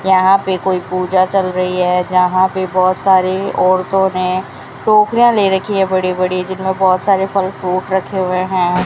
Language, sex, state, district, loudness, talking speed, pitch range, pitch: Hindi, female, Rajasthan, Bikaner, -14 LUFS, 185 wpm, 185-190 Hz, 185 Hz